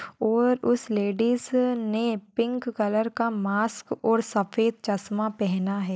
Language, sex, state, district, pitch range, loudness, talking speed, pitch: Hindi, female, Maharashtra, Solapur, 205-235 Hz, -26 LUFS, 130 wpm, 225 Hz